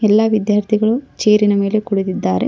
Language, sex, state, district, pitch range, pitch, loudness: Kannada, female, Karnataka, Koppal, 205-215 Hz, 210 Hz, -16 LUFS